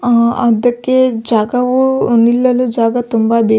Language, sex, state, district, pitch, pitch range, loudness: Kannada, female, Karnataka, Belgaum, 240 Hz, 230-250 Hz, -12 LUFS